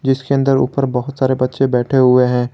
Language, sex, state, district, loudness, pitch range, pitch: Hindi, male, Jharkhand, Garhwa, -15 LUFS, 125-135 Hz, 130 Hz